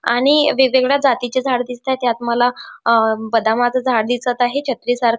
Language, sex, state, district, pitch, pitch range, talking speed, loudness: Marathi, female, Maharashtra, Chandrapur, 245 Hz, 235-260 Hz, 160 wpm, -17 LUFS